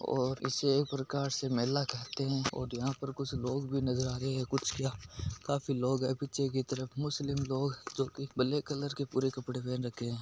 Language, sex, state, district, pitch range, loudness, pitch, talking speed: Marwari, male, Rajasthan, Nagaur, 130-140 Hz, -34 LUFS, 135 Hz, 200 wpm